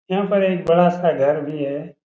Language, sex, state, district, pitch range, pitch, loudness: Hindi, male, Bihar, Saran, 150-185 Hz, 165 Hz, -19 LUFS